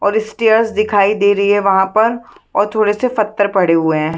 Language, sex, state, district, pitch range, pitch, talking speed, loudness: Hindi, female, Chhattisgarh, Rajnandgaon, 200-220 Hz, 205 Hz, 215 wpm, -14 LUFS